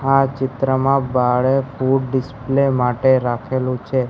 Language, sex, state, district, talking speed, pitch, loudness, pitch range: Gujarati, male, Gujarat, Gandhinagar, 115 wpm, 130 Hz, -18 LUFS, 130-135 Hz